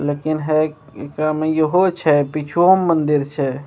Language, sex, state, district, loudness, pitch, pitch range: Maithili, male, Bihar, Begusarai, -17 LUFS, 155 Hz, 145-160 Hz